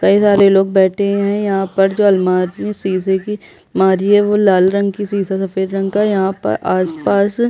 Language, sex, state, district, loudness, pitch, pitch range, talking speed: Hindi, female, Chhattisgarh, Bastar, -14 LUFS, 195 Hz, 190-205 Hz, 225 wpm